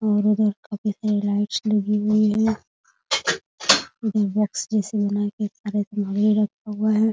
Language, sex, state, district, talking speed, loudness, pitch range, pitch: Hindi, female, Bihar, Muzaffarpur, 110 wpm, -22 LUFS, 205-215 Hz, 210 Hz